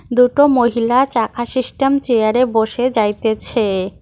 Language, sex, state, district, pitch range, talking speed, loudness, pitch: Bengali, female, West Bengal, Cooch Behar, 220-255 Hz, 105 wpm, -16 LUFS, 240 Hz